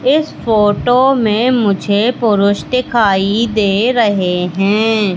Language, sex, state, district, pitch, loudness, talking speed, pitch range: Hindi, female, Madhya Pradesh, Katni, 215 Hz, -13 LUFS, 105 wpm, 200-245 Hz